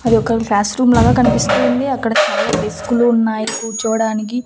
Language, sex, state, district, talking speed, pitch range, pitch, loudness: Telugu, female, Andhra Pradesh, Annamaya, 160 wpm, 220-240 Hz, 230 Hz, -15 LUFS